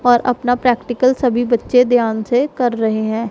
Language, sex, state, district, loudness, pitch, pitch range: Hindi, female, Punjab, Pathankot, -16 LUFS, 245 Hz, 230-250 Hz